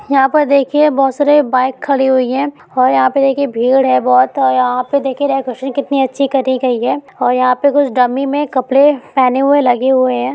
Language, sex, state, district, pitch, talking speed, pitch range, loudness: Hindi, female, Bihar, Darbhanga, 265 Hz, 205 wpm, 255-280 Hz, -13 LUFS